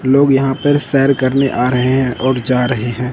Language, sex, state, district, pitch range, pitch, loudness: Hindi, male, Chandigarh, Chandigarh, 125-135 Hz, 130 Hz, -14 LUFS